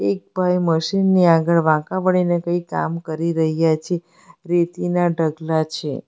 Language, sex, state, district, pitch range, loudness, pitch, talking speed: Gujarati, female, Gujarat, Valsad, 160-180 Hz, -19 LUFS, 170 Hz, 150 wpm